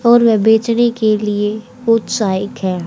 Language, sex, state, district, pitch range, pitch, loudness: Hindi, female, Haryana, Jhajjar, 205-235 Hz, 220 Hz, -15 LUFS